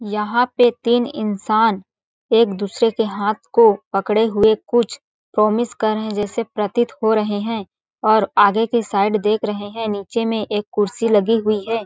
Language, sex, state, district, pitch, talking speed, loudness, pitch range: Hindi, female, Chhattisgarh, Balrampur, 215 Hz, 175 wpm, -18 LUFS, 210-230 Hz